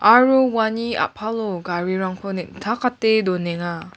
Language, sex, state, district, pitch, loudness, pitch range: Garo, female, Meghalaya, West Garo Hills, 205 Hz, -20 LUFS, 180-230 Hz